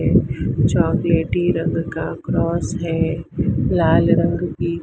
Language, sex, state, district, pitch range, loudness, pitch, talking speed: Hindi, female, Maharashtra, Mumbai Suburban, 160-170 Hz, -19 LUFS, 170 Hz, 110 wpm